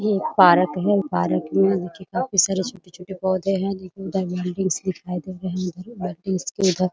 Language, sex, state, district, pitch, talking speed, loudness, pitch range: Hindi, female, Bihar, Muzaffarpur, 185 Hz, 190 wpm, -22 LUFS, 180-195 Hz